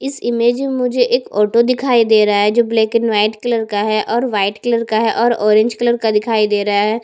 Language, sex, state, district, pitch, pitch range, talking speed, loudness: Hindi, female, Chhattisgarh, Bastar, 230 Hz, 210-240 Hz, 255 wpm, -15 LUFS